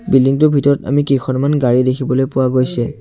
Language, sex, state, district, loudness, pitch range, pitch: Assamese, male, Assam, Sonitpur, -14 LUFS, 130-140 Hz, 135 Hz